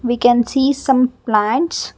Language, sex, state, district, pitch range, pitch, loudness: English, female, Karnataka, Bangalore, 240-270 Hz, 250 Hz, -16 LUFS